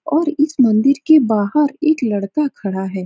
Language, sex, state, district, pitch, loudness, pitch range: Hindi, female, Uttar Pradesh, Etah, 275 Hz, -16 LUFS, 210-300 Hz